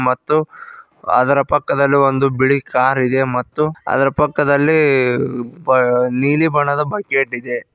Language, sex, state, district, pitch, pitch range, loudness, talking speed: Kannada, male, Karnataka, Koppal, 135 Hz, 125-145 Hz, -16 LUFS, 115 wpm